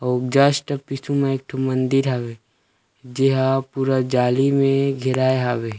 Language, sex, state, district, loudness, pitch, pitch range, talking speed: Chhattisgarhi, male, Chhattisgarh, Rajnandgaon, -20 LUFS, 130 Hz, 125-135 Hz, 145 wpm